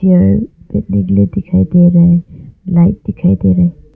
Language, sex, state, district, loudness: Hindi, female, Arunachal Pradesh, Longding, -12 LUFS